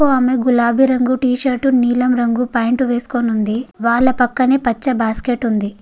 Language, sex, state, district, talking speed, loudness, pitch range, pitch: Telugu, female, Andhra Pradesh, Guntur, 145 wpm, -16 LUFS, 235-255 Hz, 245 Hz